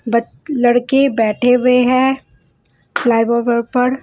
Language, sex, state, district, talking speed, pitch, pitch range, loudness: Hindi, female, Bihar, Patna, 120 wpm, 250 Hz, 235-255 Hz, -15 LUFS